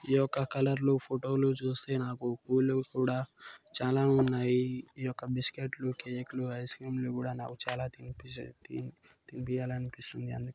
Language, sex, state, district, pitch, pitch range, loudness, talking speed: Telugu, male, Telangana, Nalgonda, 130 Hz, 125-130 Hz, -32 LUFS, 120 wpm